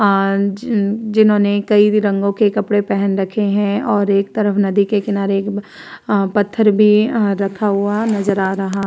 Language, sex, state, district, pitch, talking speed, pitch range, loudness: Hindi, female, Uttar Pradesh, Varanasi, 205 Hz, 160 wpm, 200-210 Hz, -16 LUFS